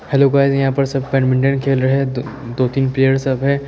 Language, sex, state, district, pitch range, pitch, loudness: Hindi, male, Chandigarh, Chandigarh, 130-140 Hz, 135 Hz, -16 LUFS